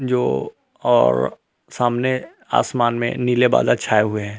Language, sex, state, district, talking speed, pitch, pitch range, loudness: Hindi, male, Chhattisgarh, Rajnandgaon, 135 wpm, 120 Hz, 105-125 Hz, -19 LUFS